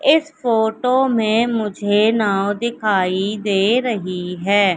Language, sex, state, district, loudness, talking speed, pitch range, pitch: Hindi, female, Madhya Pradesh, Katni, -18 LUFS, 115 wpm, 200-235 Hz, 215 Hz